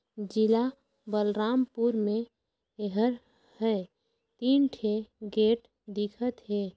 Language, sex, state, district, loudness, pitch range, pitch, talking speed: Chhattisgarhi, female, Chhattisgarh, Sarguja, -29 LUFS, 210-240 Hz, 220 Hz, 90 wpm